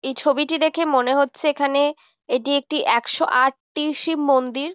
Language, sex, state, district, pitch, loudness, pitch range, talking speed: Bengali, female, West Bengal, Jhargram, 280 Hz, -20 LUFS, 265-300 Hz, 165 wpm